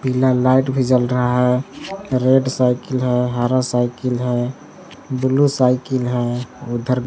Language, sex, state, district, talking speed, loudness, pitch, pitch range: Hindi, male, Jharkhand, Palamu, 135 wpm, -18 LUFS, 125 Hz, 125-130 Hz